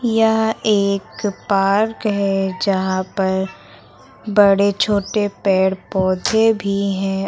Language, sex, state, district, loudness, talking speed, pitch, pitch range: Hindi, female, Uttar Pradesh, Lucknow, -18 LUFS, 100 wpm, 200 Hz, 190-210 Hz